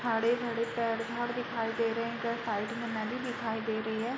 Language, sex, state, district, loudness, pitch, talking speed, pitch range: Hindi, female, Uttar Pradesh, Jalaun, -33 LUFS, 230 Hz, 215 wpm, 225-235 Hz